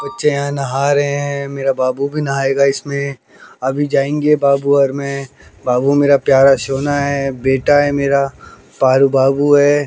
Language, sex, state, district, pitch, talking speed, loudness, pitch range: Hindi, male, Haryana, Jhajjar, 140 Hz, 160 wpm, -15 LUFS, 135-145 Hz